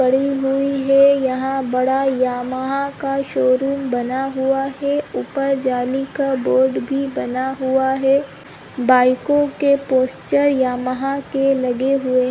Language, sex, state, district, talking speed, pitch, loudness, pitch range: Hindi, female, Chhattisgarh, Raigarh, 125 wpm, 265 Hz, -18 LUFS, 255-275 Hz